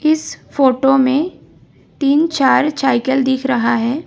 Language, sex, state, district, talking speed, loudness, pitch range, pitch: Hindi, female, Assam, Sonitpur, 130 wpm, -15 LUFS, 260-295 Hz, 270 Hz